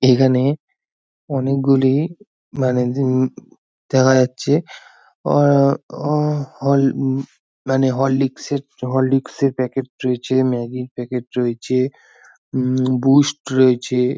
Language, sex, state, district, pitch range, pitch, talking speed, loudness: Bengali, male, West Bengal, North 24 Parganas, 130-135 Hz, 130 Hz, 100 wpm, -18 LUFS